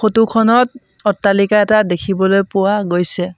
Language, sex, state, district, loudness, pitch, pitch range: Assamese, male, Assam, Sonitpur, -14 LUFS, 200 Hz, 195-215 Hz